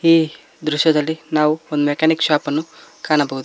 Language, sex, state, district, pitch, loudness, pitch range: Kannada, male, Karnataka, Koppal, 155 Hz, -18 LUFS, 150-160 Hz